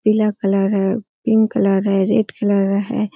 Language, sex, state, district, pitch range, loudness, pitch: Hindi, female, Uttar Pradesh, Hamirpur, 195-220 Hz, -17 LUFS, 205 Hz